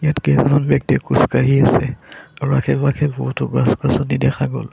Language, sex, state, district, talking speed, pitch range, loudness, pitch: Assamese, male, Assam, Sonitpur, 150 wpm, 130-145 Hz, -17 LUFS, 140 Hz